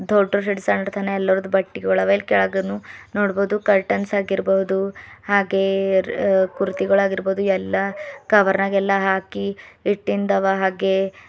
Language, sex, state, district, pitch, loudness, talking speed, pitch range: Kannada, female, Karnataka, Bidar, 195 Hz, -20 LUFS, 110 wpm, 190-200 Hz